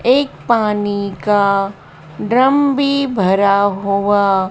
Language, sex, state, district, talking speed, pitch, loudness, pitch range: Hindi, female, Madhya Pradesh, Dhar, 95 wpm, 200 Hz, -15 LUFS, 195-240 Hz